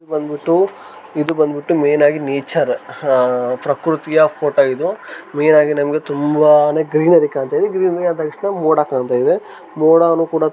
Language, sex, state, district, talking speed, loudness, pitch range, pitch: Kannada, male, Karnataka, Gulbarga, 160 wpm, -15 LUFS, 145-165 Hz, 155 Hz